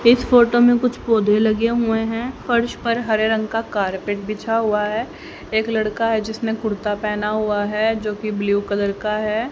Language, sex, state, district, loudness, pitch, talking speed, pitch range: Hindi, female, Haryana, Jhajjar, -20 LUFS, 220 Hz, 195 wpm, 210-230 Hz